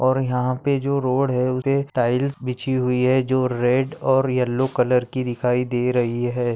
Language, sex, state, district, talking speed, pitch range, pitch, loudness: Hindi, male, Maharashtra, Aurangabad, 190 wpm, 125-130 Hz, 125 Hz, -21 LUFS